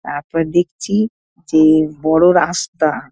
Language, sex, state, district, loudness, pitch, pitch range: Bengali, female, West Bengal, North 24 Parganas, -15 LUFS, 165 Hz, 155-175 Hz